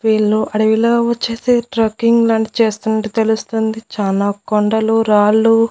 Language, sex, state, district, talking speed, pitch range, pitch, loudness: Telugu, female, Andhra Pradesh, Annamaya, 105 wpm, 215-230 Hz, 220 Hz, -15 LUFS